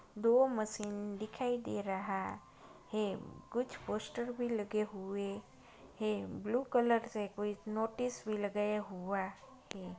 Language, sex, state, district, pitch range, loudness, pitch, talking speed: Hindi, male, Uttar Pradesh, Muzaffarnagar, 200-230 Hz, -37 LUFS, 210 Hz, 125 wpm